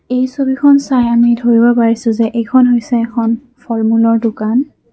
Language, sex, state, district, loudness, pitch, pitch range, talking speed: Assamese, female, Assam, Kamrup Metropolitan, -12 LUFS, 235 Hz, 230-255 Hz, 145 wpm